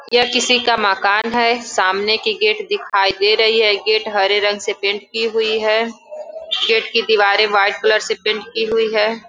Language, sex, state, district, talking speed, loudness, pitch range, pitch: Hindi, female, Uttar Pradesh, Gorakhpur, 200 wpm, -16 LUFS, 205-245 Hz, 220 Hz